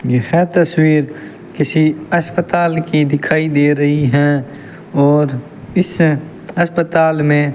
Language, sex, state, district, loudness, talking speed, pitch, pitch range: Hindi, male, Rajasthan, Bikaner, -14 LUFS, 110 wpm, 155 Hz, 145-170 Hz